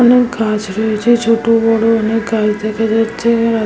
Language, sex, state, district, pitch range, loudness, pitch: Bengali, female, West Bengal, Malda, 220-230 Hz, -14 LUFS, 225 Hz